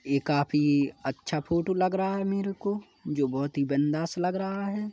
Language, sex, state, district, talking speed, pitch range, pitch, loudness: Hindi, male, Chhattisgarh, Kabirdham, 195 wpm, 145-195 Hz, 170 Hz, -28 LUFS